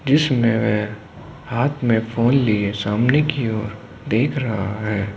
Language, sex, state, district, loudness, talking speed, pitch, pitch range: Hindi, male, Uttar Pradesh, Hamirpur, -20 LUFS, 130 wpm, 115 Hz, 105-125 Hz